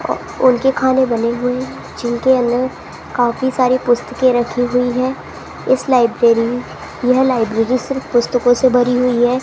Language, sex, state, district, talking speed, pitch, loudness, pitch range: Hindi, female, Rajasthan, Jaipur, 145 wpm, 250 Hz, -15 LUFS, 240-260 Hz